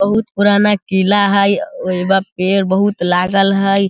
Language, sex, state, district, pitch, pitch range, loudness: Hindi, male, Bihar, Sitamarhi, 195 Hz, 190-200 Hz, -14 LUFS